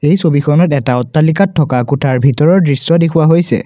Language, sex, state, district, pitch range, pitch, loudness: Assamese, male, Assam, Kamrup Metropolitan, 140-165 Hz, 155 Hz, -11 LUFS